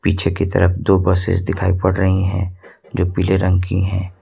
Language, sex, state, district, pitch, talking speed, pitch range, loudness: Hindi, male, Jharkhand, Ranchi, 95 Hz, 200 wpm, 90-95 Hz, -17 LUFS